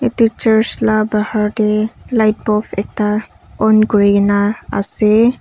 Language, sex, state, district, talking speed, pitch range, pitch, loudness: Nagamese, female, Nagaland, Kohima, 135 wpm, 210-220 Hz, 215 Hz, -14 LUFS